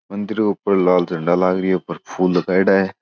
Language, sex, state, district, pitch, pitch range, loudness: Rajasthani, male, Rajasthan, Churu, 95 Hz, 90-95 Hz, -18 LUFS